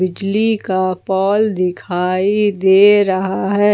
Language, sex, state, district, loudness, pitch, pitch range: Hindi, female, Jharkhand, Ranchi, -15 LUFS, 195 Hz, 185-205 Hz